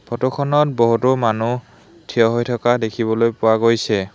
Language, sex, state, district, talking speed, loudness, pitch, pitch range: Assamese, male, Assam, Hailakandi, 145 wpm, -18 LUFS, 115 Hz, 110-125 Hz